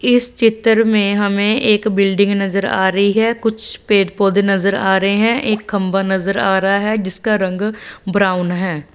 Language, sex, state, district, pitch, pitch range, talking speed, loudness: Hindi, female, Punjab, Fazilka, 200 Hz, 195-215 Hz, 180 wpm, -15 LUFS